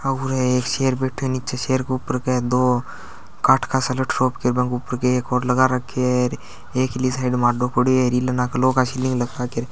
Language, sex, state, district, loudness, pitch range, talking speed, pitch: Marwari, male, Rajasthan, Churu, -21 LUFS, 125-130 Hz, 265 wpm, 125 Hz